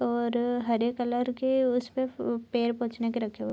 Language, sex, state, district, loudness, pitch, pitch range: Hindi, female, Bihar, Gopalganj, -29 LUFS, 240 Hz, 235-245 Hz